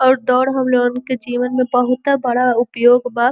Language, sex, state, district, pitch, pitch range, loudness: Bhojpuri, female, Uttar Pradesh, Gorakhpur, 250 Hz, 245-255 Hz, -16 LUFS